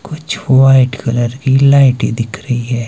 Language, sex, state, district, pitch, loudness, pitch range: Hindi, male, Himachal Pradesh, Shimla, 130 Hz, -12 LUFS, 120-135 Hz